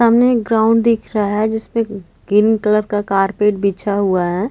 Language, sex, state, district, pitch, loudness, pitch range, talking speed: Hindi, female, Chhattisgarh, Bastar, 210 Hz, -16 LUFS, 200-225 Hz, 185 wpm